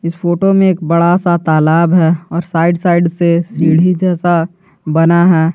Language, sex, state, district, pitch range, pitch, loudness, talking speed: Hindi, male, Jharkhand, Garhwa, 165-175 Hz, 170 Hz, -12 LUFS, 175 wpm